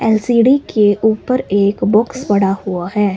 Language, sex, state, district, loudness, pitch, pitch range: Hindi, male, Himachal Pradesh, Shimla, -14 LUFS, 215 Hz, 200-235 Hz